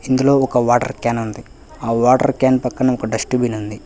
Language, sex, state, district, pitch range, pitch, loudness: Telugu, male, Telangana, Hyderabad, 115-130 Hz, 125 Hz, -17 LUFS